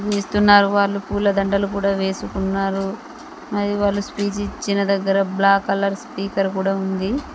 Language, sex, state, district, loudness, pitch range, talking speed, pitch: Telugu, female, Telangana, Mahabubabad, -20 LUFS, 195-205 Hz, 120 wpm, 200 Hz